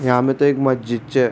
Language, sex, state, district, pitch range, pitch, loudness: Rajasthani, male, Rajasthan, Churu, 125-135 Hz, 130 Hz, -18 LUFS